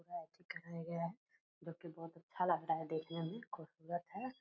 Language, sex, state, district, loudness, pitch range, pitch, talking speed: Hindi, female, Bihar, Purnia, -44 LUFS, 165-195 Hz, 170 Hz, 190 wpm